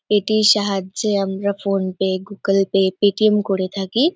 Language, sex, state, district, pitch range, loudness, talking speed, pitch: Bengali, female, West Bengal, North 24 Parganas, 195-210 Hz, -19 LUFS, 185 wpm, 200 Hz